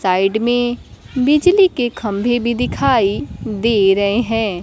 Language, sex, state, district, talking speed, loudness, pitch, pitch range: Hindi, female, Bihar, Kaimur, 130 wpm, -16 LUFS, 235 Hz, 205-245 Hz